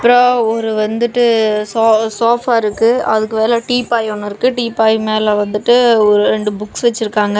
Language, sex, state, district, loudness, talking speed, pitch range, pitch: Tamil, female, Tamil Nadu, Namakkal, -13 LUFS, 145 wpm, 215-235 Hz, 225 Hz